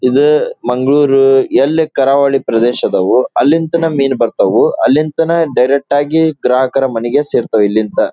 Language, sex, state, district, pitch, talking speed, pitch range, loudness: Kannada, male, Karnataka, Dharwad, 140 Hz, 120 wpm, 130-160 Hz, -12 LUFS